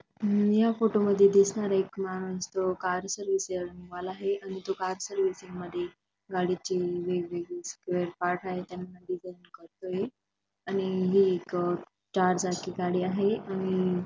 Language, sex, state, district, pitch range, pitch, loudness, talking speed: Marathi, female, Maharashtra, Dhule, 180-195 Hz, 185 Hz, -29 LUFS, 140 wpm